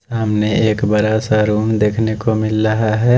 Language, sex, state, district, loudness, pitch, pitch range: Hindi, male, Chhattisgarh, Raipur, -16 LUFS, 110 Hz, 105-110 Hz